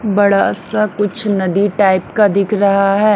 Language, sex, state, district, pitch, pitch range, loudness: Hindi, female, Haryana, Rohtak, 205 Hz, 195-210 Hz, -14 LUFS